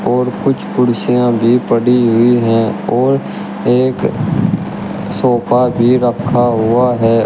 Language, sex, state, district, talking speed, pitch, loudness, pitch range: Hindi, male, Uttar Pradesh, Shamli, 115 wpm, 120 Hz, -13 LUFS, 115-125 Hz